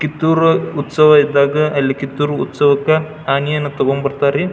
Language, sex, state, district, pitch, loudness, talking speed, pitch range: Kannada, male, Karnataka, Belgaum, 145 Hz, -15 LUFS, 120 wpm, 140-155 Hz